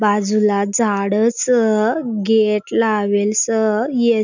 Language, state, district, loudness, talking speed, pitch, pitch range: Bhili, Maharashtra, Dhule, -17 LUFS, 115 wpm, 215 Hz, 210-225 Hz